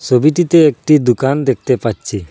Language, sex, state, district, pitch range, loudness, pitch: Bengali, male, Assam, Hailakandi, 120-155 Hz, -13 LUFS, 135 Hz